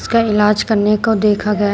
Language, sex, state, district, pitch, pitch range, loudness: Hindi, female, Uttar Pradesh, Shamli, 210 Hz, 210-220 Hz, -14 LUFS